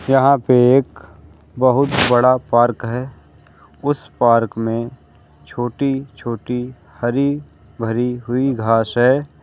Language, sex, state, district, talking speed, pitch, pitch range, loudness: Hindi, male, Uttar Pradesh, Lalitpur, 110 wpm, 125 Hz, 115-135 Hz, -17 LUFS